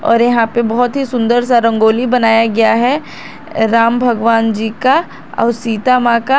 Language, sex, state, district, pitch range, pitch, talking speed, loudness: Hindi, female, Jharkhand, Garhwa, 225-245 Hz, 235 Hz, 180 wpm, -13 LUFS